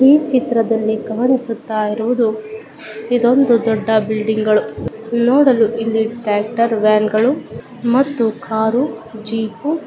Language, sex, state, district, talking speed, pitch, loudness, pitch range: Kannada, female, Karnataka, Bijapur, 90 wpm, 225 Hz, -16 LUFS, 220-245 Hz